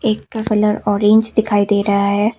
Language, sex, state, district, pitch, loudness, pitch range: Hindi, female, Assam, Kamrup Metropolitan, 210 Hz, -15 LUFS, 205-220 Hz